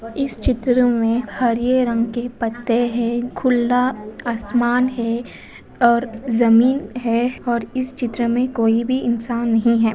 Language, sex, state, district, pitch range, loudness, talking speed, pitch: Hindi, female, Uttar Pradesh, Ghazipur, 230-250 Hz, -19 LUFS, 140 wpm, 240 Hz